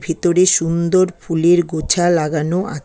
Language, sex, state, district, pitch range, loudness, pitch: Bengali, female, West Bengal, Alipurduar, 165-180 Hz, -16 LUFS, 170 Hz